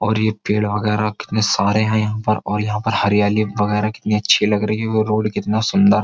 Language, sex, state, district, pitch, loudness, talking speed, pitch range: Hindi, male, Uttar Pradesh, Jyotiba Phule Nagar, 105 Hz, -18 LUFS, 240 wpm, 105-110 Hz